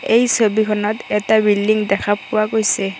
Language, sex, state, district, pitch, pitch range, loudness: Assamese, female, Assam, Kamrup Metropolitan, 215 Hz, 205-220 Hz, -17 LUFS